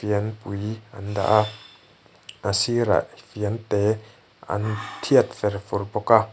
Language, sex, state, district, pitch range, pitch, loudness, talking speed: Mizo, male, Mizoram, Aizawl, 100-110 Hz, 105 Hz, -24 LUFS, 105 wpm